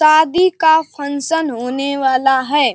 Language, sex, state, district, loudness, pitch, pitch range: Hindi, male, Uttar Pradesh, Ghazipur, -15 LUFS, 290 Hz, 270-315 Hz